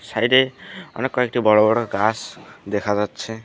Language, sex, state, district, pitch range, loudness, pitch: Bengali, male, West Bengal, Alipurduar, 105-125 Hz, -19 LUFS, 110 Hz